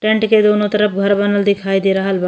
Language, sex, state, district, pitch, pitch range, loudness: Bhojpuri, female, Uttar Pradesh, Ghazipur, 200 Hz, 195-210 Hz, -14 LUFS